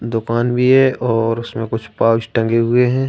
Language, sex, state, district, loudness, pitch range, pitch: Hindi, male, Madhya Pradesh, Katni, -16 LUFS, 115-125 Hz, 115 Hz